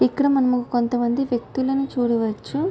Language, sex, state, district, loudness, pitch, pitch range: Telugu, female, Andhra Pradesh, Guntur, -22 LUFS, 250 Hz, 240-275 Hz